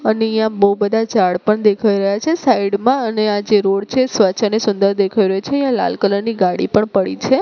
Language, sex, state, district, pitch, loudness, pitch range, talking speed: Gujarati, female, Gujarat, Gandhinagar, 210 Hz, -16 LUFS, 200-225 Hz, 240 wpm